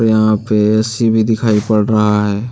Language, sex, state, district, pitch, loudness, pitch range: Hindi, male, Jharkhand, Deoghar, 110 Hz, -13 LUFS, 105-110 Hz